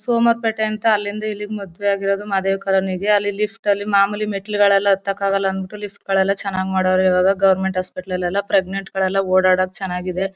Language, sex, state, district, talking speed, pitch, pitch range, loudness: Kannada, female, Karnataka, Mysore, 180 wpm, 195 Hz, 190-205 Hz, -19 LUFS